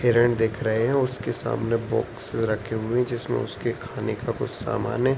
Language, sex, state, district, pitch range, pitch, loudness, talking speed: Hindi, male, Uttar Pradesh, Varanasi, 110-120 Hz, 115 Hz, -25 LUFS, 195 wpm